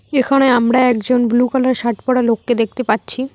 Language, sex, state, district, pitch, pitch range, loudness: Bengali, female, West Bengal, Cooch Behar, 250 Hz, 235-255 Hz, -15 LUFS